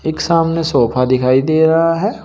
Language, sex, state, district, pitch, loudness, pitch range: Hindi, male, Uttar Pradesh, Shamli, 160 Hz, -14 LUFS, 130-165 Hz